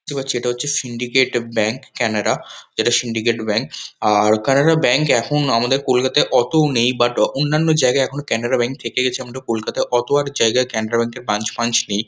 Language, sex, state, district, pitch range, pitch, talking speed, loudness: Bengali, male, West Bengal, Kolkata, 115-135 Hz, 120 Hz, 195 wpm, -18 LUFS